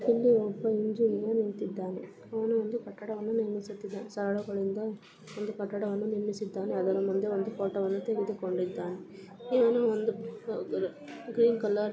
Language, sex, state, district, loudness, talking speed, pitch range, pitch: Kannada, female, Karnataka, Belgaum, -31 LUFS, 105 wpm, 200-225 Hz, 210 Hz